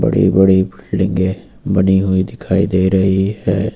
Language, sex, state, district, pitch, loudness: Hindi, male, Uttar Pradesh, Lucknow, 95 Hz, -15 LUFS